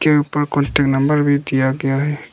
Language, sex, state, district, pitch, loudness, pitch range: Hindi, male, Arunachal Pradesh, Lower Dibang Valley, 145 Hz, -17 LUFS, 135-150 Hz